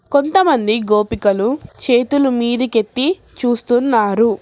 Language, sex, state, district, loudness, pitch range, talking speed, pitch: Telugu, female, Telangana, Hyderabad, -16 LUFS, 220-270 Hz, 70 wpm, 240 Hz